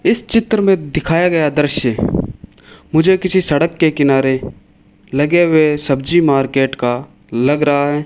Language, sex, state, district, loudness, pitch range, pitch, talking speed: Hindi, male, Rajasthan, Bikaner, -15 LUFS, 135-165 Hz, 145 Hz, 140 wpm